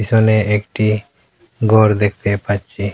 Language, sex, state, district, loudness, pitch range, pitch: Bengali, male, Assam, Hailakandi, -16 LUFS, 100-110 Hz, 105 Hz